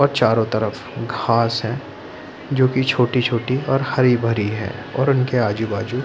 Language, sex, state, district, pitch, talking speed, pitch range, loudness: Hindi, male, Chhattisgarh, Bilaspur, 125 Hz, 140 wpm, 115-130 Hz, -19 LUFS